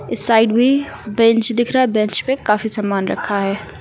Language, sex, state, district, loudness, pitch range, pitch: Hindi, female, Uttar Pradesh, Lucknow, -16 LUFS, 210-240 Hz, 225 Hz